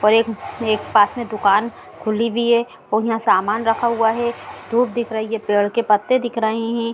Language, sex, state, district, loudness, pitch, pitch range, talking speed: Hindi, female, Bihar, Muzaffarpur, -19 LUFS, 225 Hz, 215-235 Hz, 205 wpm